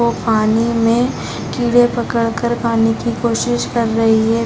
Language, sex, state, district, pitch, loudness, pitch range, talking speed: Hindi, female, Bihar, Samastipur, 230 Hz, -16 LUFS, 225-235 Hz, 160 wpm